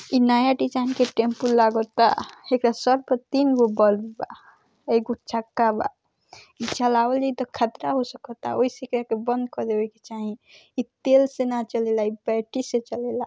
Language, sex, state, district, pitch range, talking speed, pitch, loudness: Bhojpuri, female, Bihar, East Champaran, 225-255 Hz, 170 wpm, 240 Hz, -23 LUFS